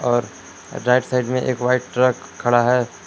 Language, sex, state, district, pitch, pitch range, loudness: Hindi, male, Jharkhand, Palamu, 125 Hz, 120-125 Hz, -19 LUFS